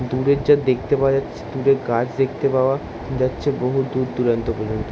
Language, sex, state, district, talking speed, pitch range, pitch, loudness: Bengali, male, West Bengal, Jalpaiguri, 170 wpm, 120-135 Hz, 130 Hz, -20 LUFS